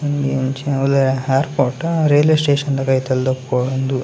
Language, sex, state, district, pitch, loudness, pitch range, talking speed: Tulu, male, Karnataka, Dakshina Kannada, 135 Hz, -17 LUFS, 130-145 Hz, 105 wpm